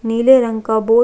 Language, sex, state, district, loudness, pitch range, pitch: Hindi, female, Chhattisgarh, Jashpur, -14 LUFS, 225-240 Hz, 230 Hz